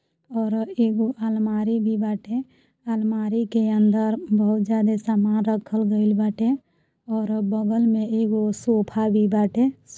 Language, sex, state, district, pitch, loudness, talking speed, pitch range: Bhojpuri, female, Uttar Pradesh, Deoria, 220 Hz, -22 LUFS, 140 wpm, 215-225 Hz